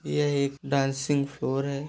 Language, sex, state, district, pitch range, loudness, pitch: Hindi, male, Uttar Pradesh, Budaun, 140-145 Hz, -27 LUFS, 140 Hz